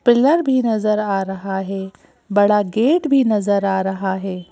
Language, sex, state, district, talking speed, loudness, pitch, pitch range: Hindi, female, Madhya Pradesh, Bhopal, 170 wpm, -18 LUFS, 205 Hz, 190-240 Hz